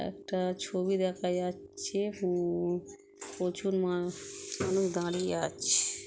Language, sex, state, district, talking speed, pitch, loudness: Bengali, female, West Bengal, Kolkata, 100 wpm, 185 Hz, -32 LUFS